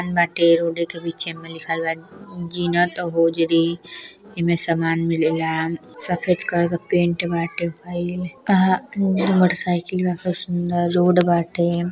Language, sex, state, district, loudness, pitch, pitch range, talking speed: Bhojpuri, female, Uttar Pradesh, Deoria, -20 LUFS, 175 Hz, 165-180 Hz, 115 wpm